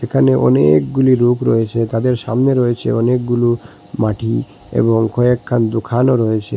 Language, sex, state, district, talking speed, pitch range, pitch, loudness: Bengali, male, Assam, Hailakandi, 120 wpm, 110-125 Hz, 115 Hz, -15 LUFS